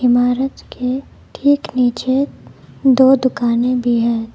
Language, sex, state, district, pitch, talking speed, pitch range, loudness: Hindi, female, Karnataka, Bangalore, 250 Hz, 110 wpm, 240-265 Hz, -16 LUFS